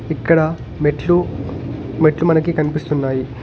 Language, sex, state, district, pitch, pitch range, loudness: Telugu, male, Telangana, Hyderabad, 150 Hz, 130-160 Hz, -18 LUFS